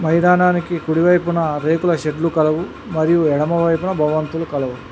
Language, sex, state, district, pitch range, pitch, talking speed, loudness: Telugu, male, Telangana, Mahabubabad, 155-175 Hz, 165 Hz, 135 wpm, -17 LUFS